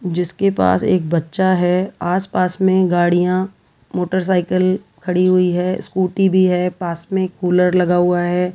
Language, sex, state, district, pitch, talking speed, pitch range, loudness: Hindi, female, Rajasthan, Jaipur, 180 Hz, 155 wpm, 175-185 Hz, -17 LUFS